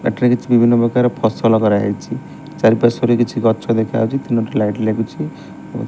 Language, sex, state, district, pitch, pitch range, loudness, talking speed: Odia, male, Odisha, Malkangiri, 115 Hz, 110-120 Hz, -16 LUFS, 175 wpm